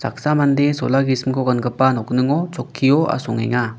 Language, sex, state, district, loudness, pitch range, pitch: Garo, male, Meghalaya, West Garo Hills, -18 LUFS, 125-140 Hz, 130 Hz